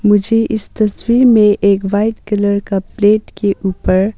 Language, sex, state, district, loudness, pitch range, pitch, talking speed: Hindi, female, Arunachal Pradesh, Papum Pare, -13 LUFS, 200-215 Hz, 205 Hz, 160 wpm